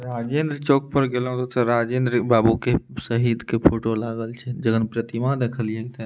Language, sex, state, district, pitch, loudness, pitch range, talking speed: Maithili, male, Bihar, Madhepura, 120 Hz, -22 LUFS, 115-125 Hz, 180 wpm